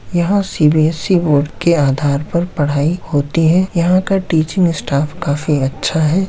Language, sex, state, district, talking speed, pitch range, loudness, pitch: Hindi, male, Bihar, Samastipur, 155 wpm, 145-180 Hz, -15 LUFS, 160 Hz